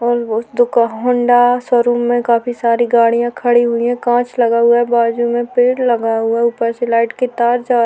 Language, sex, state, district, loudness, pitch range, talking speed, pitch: Hindi, female, Uttar Pradesh, Hamirpur, -14 LUFS, 235-245 Hz, 230 wpm, 240 Hz